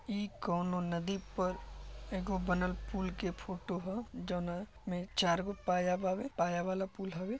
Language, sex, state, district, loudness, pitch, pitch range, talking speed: Bhojpuri, male, Bihar, Gopalganj, -37 LUFS, 185 Hz, 180-195 Hz, 160 wpm